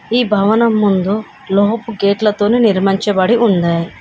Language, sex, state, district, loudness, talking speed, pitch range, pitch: Telugu, female, Telangana, Komaram Bheem, -14 LUFS, 105 wpm, 195-225 Hz, 205 Hz